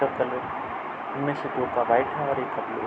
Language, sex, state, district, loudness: Hindi, male, Uttar Pradesh, Budaun, -27 LUFS